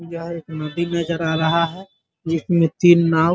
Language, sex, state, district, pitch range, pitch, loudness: Maithili, male, Bihar, Muzaffarpur, 160-170 Hz, 170 Hz, -19 LUFS